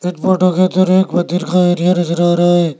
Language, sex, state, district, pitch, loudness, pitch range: Hindi, male, Rajasthan, Jaipur, 180 Hz, -13 LUFS, 175-185 Hz